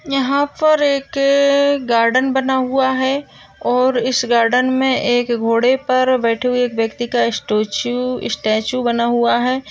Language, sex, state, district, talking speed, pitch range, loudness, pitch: Hindi, female, Uttar Pradesh, Hamirpur, 150 wpm, 235-265 Hz, -16 LUFS, 250 Hz